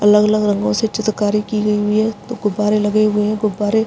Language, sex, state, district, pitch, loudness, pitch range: Hindi, female, Uttarakhand, Uttarkashi, 210 Hz, -17 LUFS, 210-215 Hz